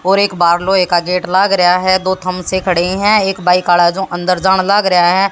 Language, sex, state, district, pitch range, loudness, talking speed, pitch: Hindi, female, Haryana, Jhajjar, 180-190 Hz, -12 LUFS, 250 wpm, 185 Hz